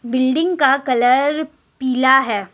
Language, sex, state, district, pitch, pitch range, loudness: Hindi, female, Jharkhand, Deoghar, 265 Hz, 255-285 Hz, -16 LUFS